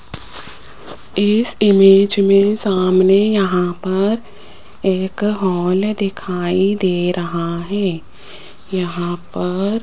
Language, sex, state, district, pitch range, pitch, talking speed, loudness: Hindi, male, Rajasthan, Jaipur, 180-200 Hz, 190 Hz, 90 wpm, -16 LUFS